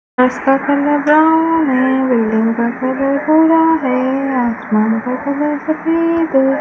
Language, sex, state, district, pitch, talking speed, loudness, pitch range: Hindi, female, Rajasthan, Bikaner, 275 Hz, 135 wpm, -14 LUFS, 255-310 Hz